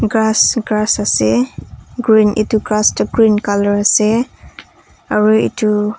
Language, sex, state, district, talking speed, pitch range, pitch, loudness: Nagamese, female, Nagaland, Kohima, 120 wpm, 205-220 Hz, 215 Hz, -14 LUFS